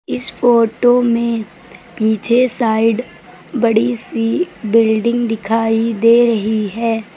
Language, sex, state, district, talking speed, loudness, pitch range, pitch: Hindi, female, Uttar Pradesh, Lucknow, 100 wpm, -15 LUFS, 220-235 Hz, 230 Hz